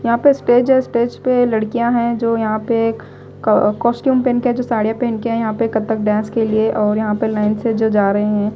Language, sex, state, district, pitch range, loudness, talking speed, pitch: Hindi, female, Delhi, New Delhi, 215-240 Hz, -16 LUFS, 260 wpm, 225 Hz